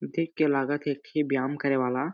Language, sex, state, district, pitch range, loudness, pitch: Chhattisgarhi, male, Chhattisgarh, Jashpur, 135-150 Hz, -27 LUFS, 145 Hz